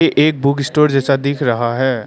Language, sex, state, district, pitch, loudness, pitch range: Hindi, male, Arunachal Pradesh, Lower Dibang Valley, 140 Hz, -15 LUFS, 130-145 Hz